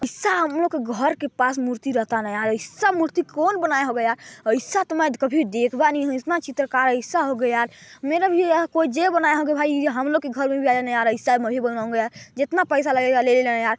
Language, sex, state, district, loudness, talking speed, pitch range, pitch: Hindi, male, Chhattisgarh, Balrampur, -21 LUFS, 170 wpm, 245-320 Hz, 275 Hz